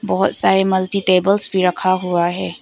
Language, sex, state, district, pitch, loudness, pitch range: Hindi, female, Arunachal Pradesh, Papum Pare, 185 Hz, -16 LUFS, 180-190 Hz